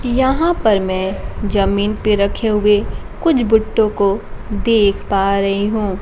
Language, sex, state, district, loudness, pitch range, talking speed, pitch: Hindi, female, Bihar, Kaimur, -16 LUFS, 200-220 Hz, 140 wpm, 210 Hz